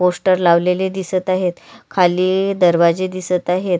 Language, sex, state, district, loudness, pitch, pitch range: Marathi, female, Maharashtra, Sindhudurg, -16 LUFS, 180 Hz, 175-185 Hz